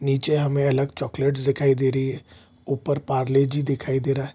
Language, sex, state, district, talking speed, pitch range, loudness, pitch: Hindi, male, Bihar, Vaishali, 205 wpm, 135-140 Hz, -23 LUFS, 135 Hz